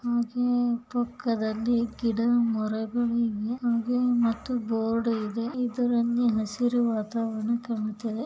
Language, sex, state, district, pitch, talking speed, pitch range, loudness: Kannada, female, Karnataka, Bellary, 235 Hz, 80 wpm, 225-240 Hz, -27 LUFS